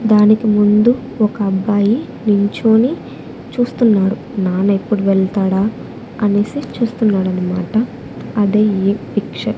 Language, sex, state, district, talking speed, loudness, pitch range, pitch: Telugu, female, Andhra Pradesh, Annamaya, 95 wpm, -15 LUFS, 200-230 Hz, 210 Hz